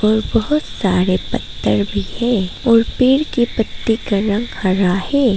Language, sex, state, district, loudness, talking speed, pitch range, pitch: Hindi, female, Arunachal Pradesh, Papum Pare, -17 LUFS, 145 wpm, 185-240 Hz, 215 Hz